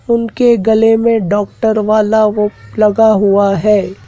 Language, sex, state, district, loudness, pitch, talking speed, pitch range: Hindi, male, Madhya Pradesh, Dhar, -12 LUFS, 215 Hz, 130 wpm, 205-225 Hz